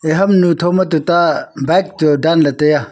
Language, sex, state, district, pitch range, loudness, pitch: Wancho, male, Arunachal Pradesh, Longding, 150-175 Hz, -13 LUFS, 165 Hz